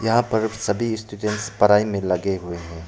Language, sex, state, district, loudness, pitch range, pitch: Hindi, male, Arunachal Pradesh, Papum Pare, -22 LUFS, 95-110 Hz, 105 Hz